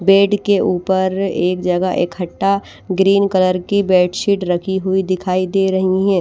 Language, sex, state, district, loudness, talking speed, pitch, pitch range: Hindi, female, Bihar, Katihar, -16 LUFS, 165 wpm, 190 Hz, 185-195 Hz